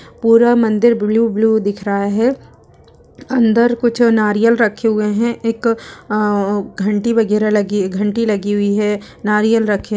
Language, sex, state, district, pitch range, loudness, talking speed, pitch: Hindi, female, Uttar Pradesh, Budaun, 210-230 Hz, -15 LUFS, 140 wpm, 215 Hz